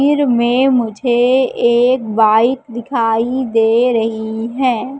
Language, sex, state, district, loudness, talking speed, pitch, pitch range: Hindi, female, Madhya Pradesh, Katni, -14 LUFS, 95 wpm, 240 Hz, 225-260 Hz